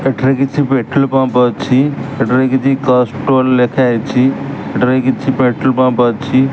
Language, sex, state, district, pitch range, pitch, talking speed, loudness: Odia, male, Odisha, Sambalpur, 125-135 Hz, 130 Hz, 130 wpm, -13 LUFS